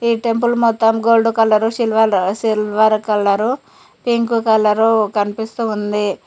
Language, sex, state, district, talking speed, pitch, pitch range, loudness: Telugu, female, Telangana, Mahabubabad, 115 wpm, 220 Hz, 210-230 Hz, -16 LUFS